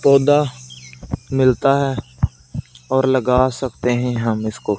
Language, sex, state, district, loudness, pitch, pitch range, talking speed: Hindi, male, Punjab, Fazilka, -18 LUFS, 130 Hz, 125-135 Hz, 115 wpm